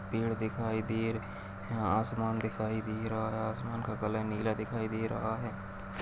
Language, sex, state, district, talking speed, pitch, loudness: Hindi, male, Uttarakhand, Tehri Garhwal, 160 wpm, 110 Hz, -35 LUFS